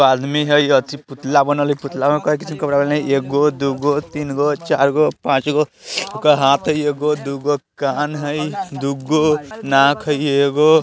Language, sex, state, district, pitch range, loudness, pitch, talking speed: Bajjika, male, Bihar, Vaishali, 140-150 Hz, -17 LUFS, 145 Hz, 135 wpm